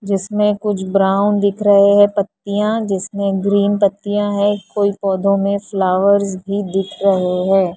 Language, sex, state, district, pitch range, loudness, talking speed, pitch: Hindi, female, Maharashtra, Mumbai Suburban, 195-205 Hz, -16 LUFS, 145 wpm, 200 Hz